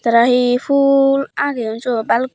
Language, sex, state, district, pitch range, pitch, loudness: Chakma, female, Tripura, Dhalai, 235-275 Hz, 250 Hz, -15 LUFS